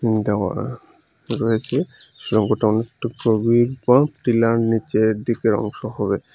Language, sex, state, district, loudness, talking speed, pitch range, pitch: Bengali, male, Tripura, Unakoti, -20 LUFS, 115 wpm, 110-120 Hz, 115 Hz